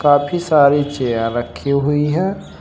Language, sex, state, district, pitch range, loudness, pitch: Hindi, male, Uttar Pradesh, Shamli, 140-150 Hz, -17 LUFS, 145 Hz